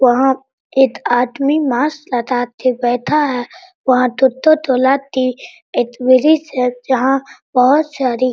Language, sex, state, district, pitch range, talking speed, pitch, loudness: Hindi, female, Bihar, Araria, 250-275 Hz, 115 wpm, 260 Hz, -15 LUFS